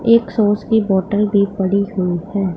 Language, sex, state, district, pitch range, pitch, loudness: Hindi, female, Punjab, Pathankot, 190-210 Hz, 200 Hz, -17 LUFS